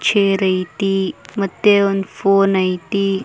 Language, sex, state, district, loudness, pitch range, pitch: Kannada, female, Karnataka, Koppal, -17 LUFS, 190-200 Hz, 195 Hz